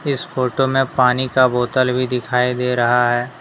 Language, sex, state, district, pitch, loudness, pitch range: Hindi, male, Jharkhand, Deoghar, 125 Hz, -17 LUFS, 125-130 Hz